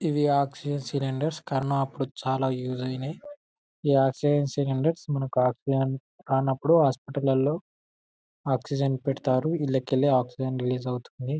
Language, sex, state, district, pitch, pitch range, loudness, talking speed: Telugu, male, Telangana, Karimnagar, 135 Hz, 130-145 Hz, -26 LUFS, 120 wpm